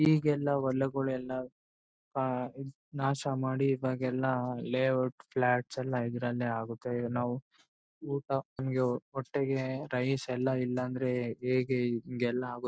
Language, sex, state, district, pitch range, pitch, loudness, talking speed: Kannada, male, Karnataka, Bellary, 125-135 Hz, 130 Hz, -33 LUFS, 120 wpm